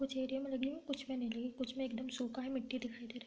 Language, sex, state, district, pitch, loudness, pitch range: Hindi, female, Uttar Pradesh, Deoria, 260 Hz, -41 LUFS, 245-265 Hz